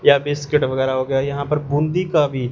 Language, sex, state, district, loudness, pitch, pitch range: Hindi, male, Punjab, Fazilka, -19 LUFS, 145 Hz, 135-150 Hz